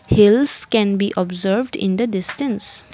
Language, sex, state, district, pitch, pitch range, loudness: English, female, Assam, Kamrup Metropolitan, 205 Hz, 195-240 Hz, -16 LUFS